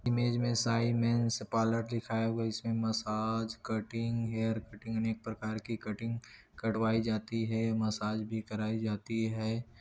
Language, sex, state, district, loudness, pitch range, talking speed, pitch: Hindi, male, Chhattisgarh, Korba, -34 LUFS, 110-115 Hz, 140 wpm, 110 Hz